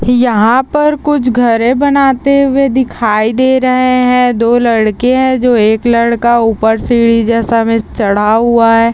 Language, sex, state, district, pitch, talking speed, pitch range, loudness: Hindi, female, Bihar, Madhepura, 240 Hz, 155 wpm, 230-260 Hz, -10 LUFS